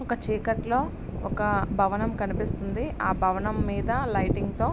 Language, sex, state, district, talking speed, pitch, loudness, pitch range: Telugu, male, Andhra Pradesh, Srikakulam, 140 wpm, 210 Hz, -27 LUFS, 195-220 Hz